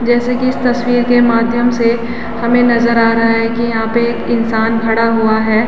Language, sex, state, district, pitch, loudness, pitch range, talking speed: Hindi, female, Uttarakhand, Tehri Garhwal, 235 Hz, -13 LUFS, 230-240 Hz, 210 wpm